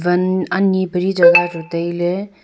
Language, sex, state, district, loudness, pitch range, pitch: Wancho, female, Arunachal Pradesh, Longding, -16 LUFS, 175-185 Hz, 180 Hz